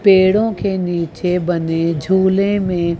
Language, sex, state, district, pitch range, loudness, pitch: Hindi, female, Chandigarh, Chandigarh, 170-195 Hz, -16 LUFS, 180 Hz